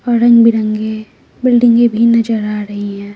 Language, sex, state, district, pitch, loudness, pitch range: Hindi, female, Bihar, Patna, 225 Hz, -12 LUFS, 210-235 Hz